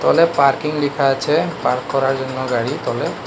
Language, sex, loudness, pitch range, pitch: Bengali, male, -18 LUFS, 135-150 Hz, 135 Hz